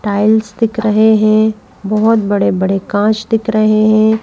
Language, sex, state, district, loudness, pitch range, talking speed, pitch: Hindi, female, Madhya Pradesh, Bhopal, -12 LUFS, 210-220 Hz, 140 wpm, 215 Hz